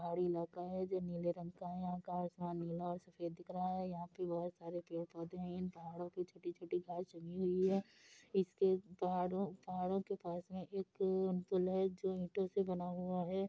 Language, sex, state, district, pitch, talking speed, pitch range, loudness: Hindi, female, Uttar Pradesh, Hamirpur, 180 Hz, 210 wpm, 175-190 Hz, -41 LUFS